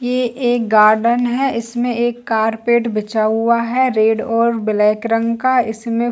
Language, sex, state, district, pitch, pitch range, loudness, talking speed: Hindi, female, Chhattisgarh, Bilaspur, 230 Hz, 220-240 Hz, -16 LUFS, 155 wpm